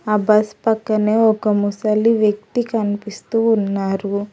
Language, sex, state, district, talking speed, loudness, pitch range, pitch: Telugu, female, Telangana, Hyderabad, 110 wpm, -18 LUFS, 205-225 Hz, 215 Hz